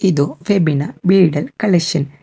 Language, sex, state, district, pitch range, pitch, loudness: Kannada, male, Karnataka, Bangalore, 145-190 Hz, 165 Hz, -16 LUFS